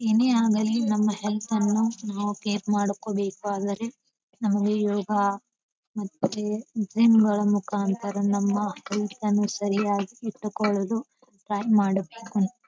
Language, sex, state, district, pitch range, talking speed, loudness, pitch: Kannada, female, Karnataka, Bijapur, 200-220 Hz, 95 wpm, -25 LUFS, 210 Hz